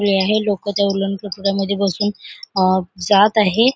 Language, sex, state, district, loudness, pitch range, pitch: Marathi, female, Maharashtra, Chandrapur, -18 LUFS, 195-205 Hz, 200 Hz